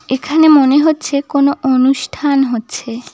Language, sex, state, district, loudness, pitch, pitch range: Bengali, female, West Bengal, Cooch Behar, -13 LUFS, 280 Hz, 260-295 Hz